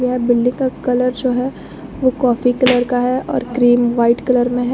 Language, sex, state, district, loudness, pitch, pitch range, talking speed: Hindi, female, Jharkhand, Garhwa, -16 LUFS, 250 Hz, 245-255 Hz, 215 wpm